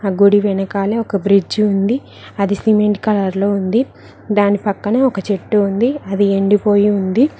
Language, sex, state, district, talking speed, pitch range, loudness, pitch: Telugu, female, Telangana, Mahabubabad, 145 wpm, 200-215 Hz, -15 LUFS, 205 Hz